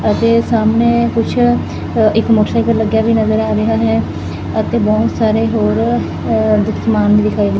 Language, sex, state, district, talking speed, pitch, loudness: Punjabi, female, Punjab, Fazilka, 150 wpm, 115 Hz, -14 LUFS